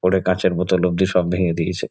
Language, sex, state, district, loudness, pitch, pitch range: Bengali, male, West Bengal, Kolkata, -19 LUFS, 90 Hz, 90-95 Hz